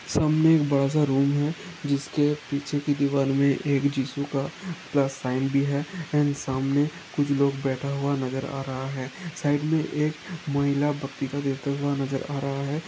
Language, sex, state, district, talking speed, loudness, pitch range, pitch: Hindi, male, Chhattisgarh, Sarguja, 185 wpm, -26 LUFS, 135-150 Hz, 140 Hz